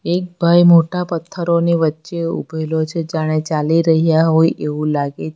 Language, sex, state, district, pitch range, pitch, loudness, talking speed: Gujarati, female, Gujarat, Valsad, 155-170 Hz, 165 Hz, -16 LUFS, 155 wpm